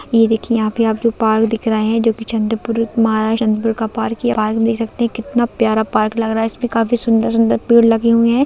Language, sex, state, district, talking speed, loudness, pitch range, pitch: Hindi, female, Maharashtra, Chandrapur, 250 wpm, -16 LUFS, 220-230 Hz, 225 Hz